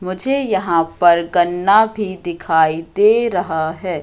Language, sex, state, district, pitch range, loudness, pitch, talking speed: Hindi, female, Madhya Pradesh, Katni, 165-205 Hz, -16 LUFS, 180 Hz, 135 wpm